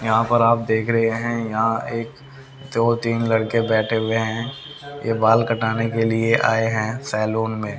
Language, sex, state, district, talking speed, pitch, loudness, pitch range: Hindi, male, Haryana, Rohtak, 175 wpm, 115 Hz, -20 LUFS, 110-115 Hz